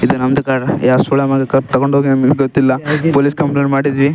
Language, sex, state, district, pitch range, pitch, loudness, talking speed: Kannada, male, Karnataka, Raichur, 135-140 Hz, 135 Hz, -13 LUFS, 175 wpm